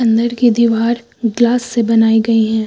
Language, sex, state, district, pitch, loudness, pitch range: Hindi, female, Uttar Pradesh, Lucknow, 230 Hz, -14 LUFS, 225-235 Hz